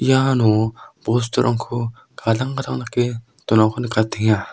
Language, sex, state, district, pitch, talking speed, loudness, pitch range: Garo, male, Meghalaya, South Garo Hills, 115 Hz, 90 wpm, -20 LUFS, 110-125 Hz